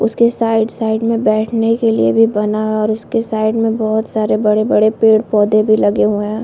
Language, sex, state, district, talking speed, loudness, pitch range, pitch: Hindi, female, Chhattisgarh, Bilaspur, 205 wpm, -14 LUFS, 215-225 Hz, 220 Hz